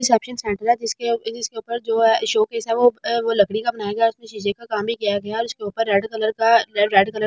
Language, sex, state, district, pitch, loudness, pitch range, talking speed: Hindi, female, Delhi, New Delhi, 225 Hz, -20 LUFS, 210-235 Hz, 220 wpm